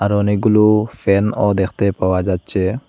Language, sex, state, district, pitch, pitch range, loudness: Bengali, male, Assam, Hailakandi, 100 Hz, 95-105 Hz, -16 LUFS